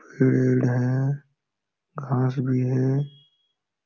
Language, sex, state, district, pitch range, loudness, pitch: Hindi, male, Bihar, Supaul, 130-140 Hz, -23 LUFS, 130 Hz